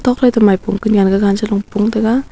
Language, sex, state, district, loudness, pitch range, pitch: Wancho, female, Arunachal Pradesh, Longding, -14 LUFS, 200-225 Hz, 210 Hz